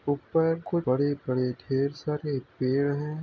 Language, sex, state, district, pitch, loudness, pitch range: Hindi, male, Uttar Pradesh, Gorakhpur, 145 Hz, -28 LUFS, 135-150 Hz